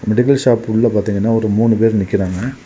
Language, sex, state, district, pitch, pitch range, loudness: Tamil, male, Tamil Nadu, Kanyakumari, 115 Hz, 105-120 Hz, -15 LUFS